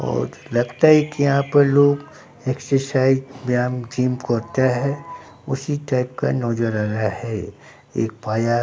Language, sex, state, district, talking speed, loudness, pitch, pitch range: Hindi, male, Bihar, Katihar, 155 wpm, -20 LUFS, 125 Hz, 120-140 Hz